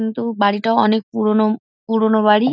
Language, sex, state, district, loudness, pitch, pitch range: Bengali, female, West Bengal, Dakshin Dinajpur, -17 LUFS, 220 Hz, 215-225 Hz